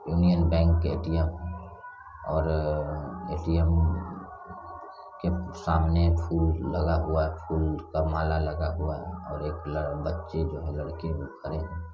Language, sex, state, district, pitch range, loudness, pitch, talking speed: Hindi, male, Bihar, Saran, 80-85 Hz, -28 LUFS, 80 Hz, 140 wpm